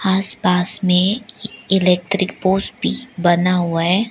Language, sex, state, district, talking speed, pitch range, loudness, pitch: Hindi, female, Arunachal Pradesh, Lower Dibang Valley, 130 wpm, 180-195 Hz, -17 LUFS, 190 Hz